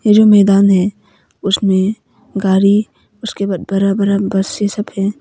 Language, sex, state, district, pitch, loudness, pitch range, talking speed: Hindi, female, Arunachal Pradesh, Papum Pare, 200 Hz, -14 LUFS, 195-210 Hz, 160 wpm